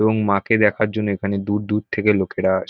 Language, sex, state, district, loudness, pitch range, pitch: Bengali, male, West Bengal, North 24 Parganas, -20 LUFS, 100-105 Hz, 105 Hz